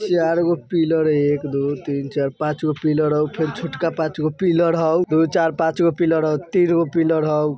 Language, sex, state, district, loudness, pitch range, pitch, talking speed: Bajjika, male, Bihar, Vaishali, -19 LUFS, 150-165 Hz, 160 Hz, 180 wpm